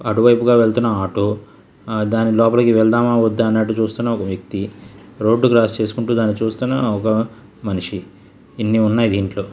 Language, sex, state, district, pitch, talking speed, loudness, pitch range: Telugu, male, Andhra Pradesh, Krishna, 110 Hz, 145 wpm, -17 LUFS, 100-115 Hz